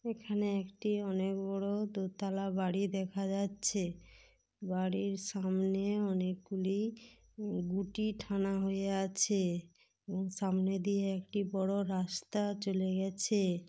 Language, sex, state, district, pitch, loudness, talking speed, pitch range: Bengali, female, West Bengal, Dakshin Dinajpur, 195 Hz, -35 LUFS, 90 wpm, 190-200 Hz